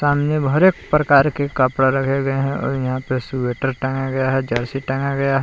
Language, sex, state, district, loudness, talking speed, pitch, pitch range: Hindi, male, Jharkhand, Palamu, -19 LUFS, 210 wpm, 135 Hz, 130-140 Hz